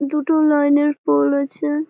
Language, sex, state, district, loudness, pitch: Bengali, female, West Bengal, Malda, -17 LUFS, 295 Hz